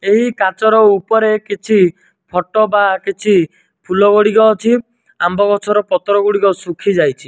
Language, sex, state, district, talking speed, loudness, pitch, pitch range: Odia, male, Odisha, Nuapada, 125 wpm, -13 LUFS, 205 Hz, 190-215 Hz